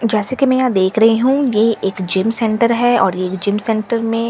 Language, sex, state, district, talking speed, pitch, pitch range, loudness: Hindi, female, Bihar, Katihar, 250 wpm, 225 Hz, 200-235 Hz, -15 LUFS